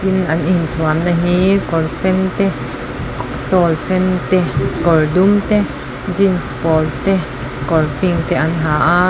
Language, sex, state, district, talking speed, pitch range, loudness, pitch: Mizo, female, Mizoram, Aizawl, 150 wpm, 155-185 Hz, -16 LUFS, 170 Hz